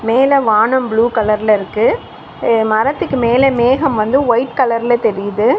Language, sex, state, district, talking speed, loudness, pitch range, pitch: Tamil, female, Tamil Nadu, Chennai, 140 wpm, -14 LUFS, 220-260 Hz, 235 Hz